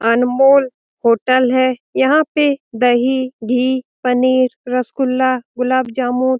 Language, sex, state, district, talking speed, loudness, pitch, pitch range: Hindi, female, Bihar, Lakhisarai, 105 wpm, -15 LUFS, 255 Hz, 250-260 Hz